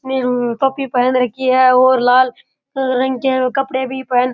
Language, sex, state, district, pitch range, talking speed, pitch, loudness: Rajasthani, male, Rajasthan, Churu, 255-265 Hz, 180 wpm, 260 Hz, -15 LUFS